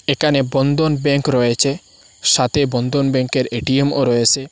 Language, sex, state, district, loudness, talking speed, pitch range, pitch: Bengali, male, Assam, Hailakandi, -16 LUFS, 95 wpm, 125-145 Hz, 135 Hz